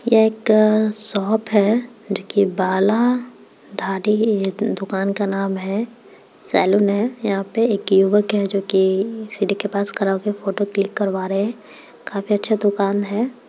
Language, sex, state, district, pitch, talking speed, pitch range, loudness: Hindi, female, Bihar, Madhepura, 205 Hz, 160 wpm, 195-215 Hz, -19 LUFS